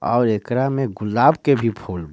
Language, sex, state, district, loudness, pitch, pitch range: Bhojpuri, male, Jharkhand, Palamu, -19 LUFS, 120 Hz, 105-135 Hz